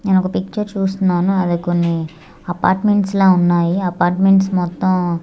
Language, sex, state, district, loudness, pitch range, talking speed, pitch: Telugu, female, Andhra Pradesh, Manyam, -16 LUFS, 175-195 Hz, 115 wpm, 185 Hz